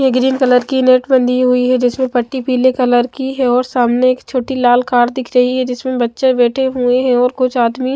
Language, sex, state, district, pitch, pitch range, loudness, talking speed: Hindi, female, Maharashtra, Mumbai Suburban, 255 Hz, 245-260 Hz, -14 LUFS, 225 wpm